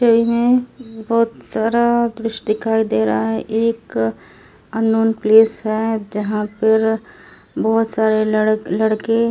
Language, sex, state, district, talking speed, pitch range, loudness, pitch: Hindi, female, Delhi, New Delhi, 130 wpm, 215-230 Hz, -17 LUFS, 220 Hz